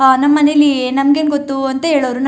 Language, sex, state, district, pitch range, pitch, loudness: Kannada, female, Karnataka, Chamarajanagar, 265-295 Hz, 280 Hz, -13 LUFS